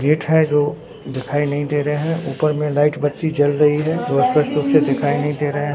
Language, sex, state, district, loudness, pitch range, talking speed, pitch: Hindi, male, Bihar, Katihar, -18 LUFS, 145-150 Hz, 240 wpm, 150 Hz